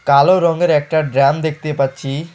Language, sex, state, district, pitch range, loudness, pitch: Bengali, male, West Bengal, Alipurduar, 140-160 Hz, -15 LUFS, 150 Hz